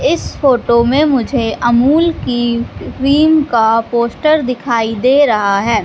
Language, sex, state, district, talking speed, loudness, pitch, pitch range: Hindi, female, Madhya Pradesh, Katni, 135 wpm, -13 LUFS, 245 Hz, 235-280 Hz